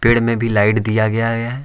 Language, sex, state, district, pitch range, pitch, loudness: Hindi, male, Jharkhand, Ranchi, 110-115 Hz, 115 Hz, -16 LUFS